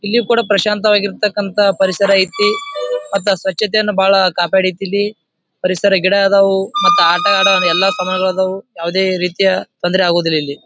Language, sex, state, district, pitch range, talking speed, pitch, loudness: Kannada, male, Karnataka, Bijapur, 185-205 Hz, 140 wpm, 195 Hz, -14 LUFS